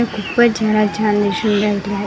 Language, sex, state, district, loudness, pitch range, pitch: Marathi, female, Maharashtra, Gondia, -16 LUFS, 205-220 Hz, 210 Hz